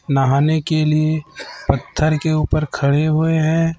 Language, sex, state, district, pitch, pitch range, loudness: Hindi, male, Chhattisgarh, Raipur, 155 Hz, 150-160 Hz, -18 LUFS